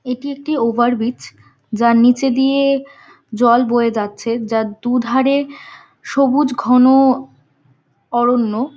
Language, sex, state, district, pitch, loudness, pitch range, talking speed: Bengali, female, West Bengal, Dakshin Dinajpur, 245 Hz, -15 LUFS, 230-270 Hz, 110 wpm